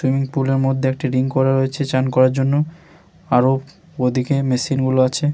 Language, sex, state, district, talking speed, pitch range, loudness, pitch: Bengali, male, West Bengal, Malda, 190 wpm, 130-140 Hz, -18 LUFS, 135 Hz